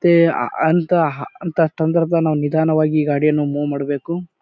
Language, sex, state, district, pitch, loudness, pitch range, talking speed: Kannada, male, Karnataka, Bijapur, 160 Hz, -18 LUFS, 145-170 Hz, 135 wpm